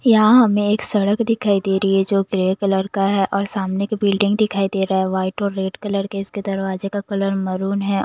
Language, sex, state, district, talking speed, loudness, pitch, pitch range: Hindi, female, Bihar, Patna, 240 wpm, -19 LUFS, 195 Hz, 195-205 Hz